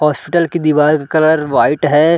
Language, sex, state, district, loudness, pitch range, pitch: Hindi, male, Bihar, Gaya, -13 LUFS, 150-160 Hz, 155 Hz